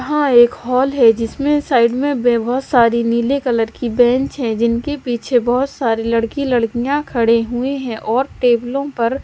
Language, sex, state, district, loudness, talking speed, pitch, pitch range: Hindi, female, Delhi, New Delhi, -16 LUFS, 170 wpm, 245 Hz, 235-270 Hz